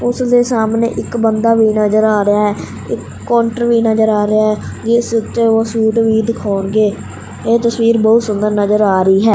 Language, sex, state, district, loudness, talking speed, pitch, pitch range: Punjabi, male, Punjab, Fazilka, -13 LUFS, 190 wpm, 220 Hz, 210-230 Hz